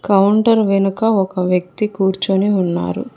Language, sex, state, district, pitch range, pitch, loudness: Telugu, female, Telangana, Hyderabad, 185-210 Hz, 195 Hz, -16 LUFS